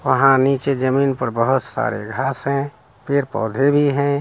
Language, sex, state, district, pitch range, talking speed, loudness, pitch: Hindi, male, Bihar, Muzaffarpur, 130-140 Hz, 155 wpm, -18 LUFS, 135 Hz